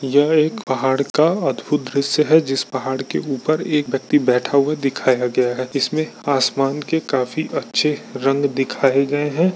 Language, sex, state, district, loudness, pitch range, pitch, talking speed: Hindi, male, Bihar, Bhagalpur, -19 LUFS, 130-150 Hz, 140 Hz, 170 wpm